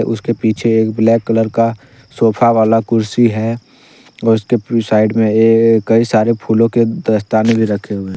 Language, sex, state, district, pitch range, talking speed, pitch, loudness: Hindi, male, Jharkhand, Deoghar, 110-115 Hz, 170 wpm, 115 Hz, -13 LUFS